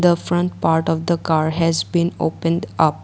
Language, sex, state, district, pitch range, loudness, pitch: English, female, Assam, Kamrup Metropolitan, 160-170 Hz, -19 LUFS, 165 Hz